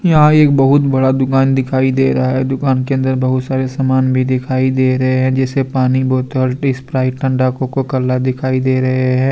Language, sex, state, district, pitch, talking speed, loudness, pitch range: Hindi, male, Jharkhand, Deoghar, 130 Hz, 200 wpm, -14 LUFS, 130-135 Hz